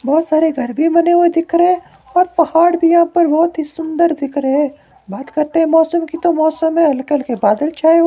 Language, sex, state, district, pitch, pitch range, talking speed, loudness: Hindi, male, Himachal Pradesh, Shimla, 320 Hz, 295-335 Hz, 240 wpm, -14 LUFS